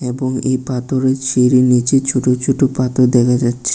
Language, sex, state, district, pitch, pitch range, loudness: Bengali, male, Tripura, West Tripura, 125 Hz, 125-130 Hz, -15 LUFS